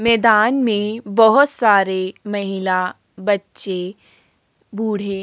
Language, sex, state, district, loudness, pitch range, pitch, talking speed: Hindi, female, Uttarakhand, Tehri Garhwal, -17 LUFS, 195-220 Hz, 205 Hz, 90 wpm